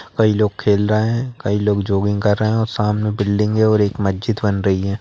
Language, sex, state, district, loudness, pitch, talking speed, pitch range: Hindi, male, Bihar, East Champaran, -18 LUFS, 105 Hz, 215 wpm, 100-110 Hz